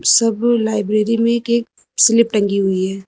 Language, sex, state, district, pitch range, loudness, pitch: Hindi, female, Uttar Pradesh, Lucknow, 205-235 Hz, -16 LUFS, 225 Hz